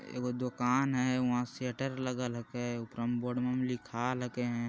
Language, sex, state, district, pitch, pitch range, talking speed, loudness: Magahi, male, Bihar, Jamui, 125 Hz, 120-125 Hz, 180 wpm, -34 LUFS